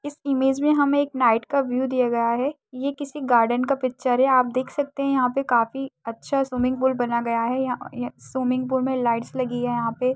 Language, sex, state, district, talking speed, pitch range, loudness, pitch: Hindi, female, Uttar Pradesh, Deoria, 235 wpm, 245-275 Hz, -23 LUFS, 255 Hz